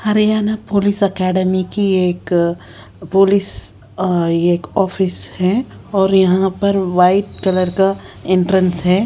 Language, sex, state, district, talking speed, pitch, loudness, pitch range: Hindi, female, Haryana, Charkhi Dadri, 130 wpm, 190 Hz, -16 LUFS, 180-195 Hz